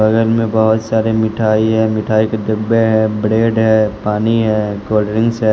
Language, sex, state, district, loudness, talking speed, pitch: Hindi, male, Bihar, West Champaran, -14 LUFS, 185 wpm, 110 Hz